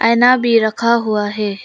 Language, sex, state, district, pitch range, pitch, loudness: Hindi, female, Arunachal Pradesh, Papum Pare, 210-235 Hz, 230 Hz, -14 LUFS